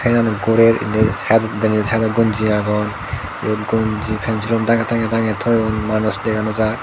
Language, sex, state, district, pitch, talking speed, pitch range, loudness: Chakma, male, Tripura, Dhalai, 110 Hz, 175 wpm, 110-115 Hz, -17 LUFS